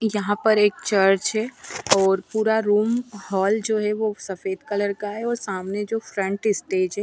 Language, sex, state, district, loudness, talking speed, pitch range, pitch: Hindi, female, Maharashtra, Washim, -22 LUFS, 195 wpm, 195-220 Hz, 205 Hz